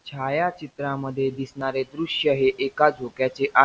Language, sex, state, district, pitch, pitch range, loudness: Marathi, male, Maharashtra, Pune, 135 Hz, 135-145 Hz, -24 LUFS